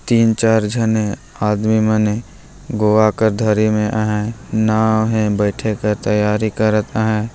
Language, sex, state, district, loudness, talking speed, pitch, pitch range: Hindi, male, Chhattisgarh, Jashpur, -17 LUFS, 140 wpm, 110 Hz, 105-110 Hz